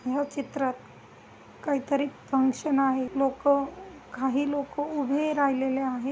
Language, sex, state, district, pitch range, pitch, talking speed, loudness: Marathi, female, Maharashtra, Aurangabad, 265-285 Hz, 275 Hz, 115 wpm, -27 LUFS